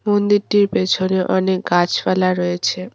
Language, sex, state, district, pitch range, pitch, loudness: Bengali, female, West Bengal, Cooch Behar, 185-205 Hz, 185 Hz, -17 LUFS